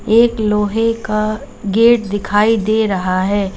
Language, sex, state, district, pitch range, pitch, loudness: Hindi, female, Uttar Pradesh, Lalitpur, 205-225 Hz, 215 Hz, -15 LUFS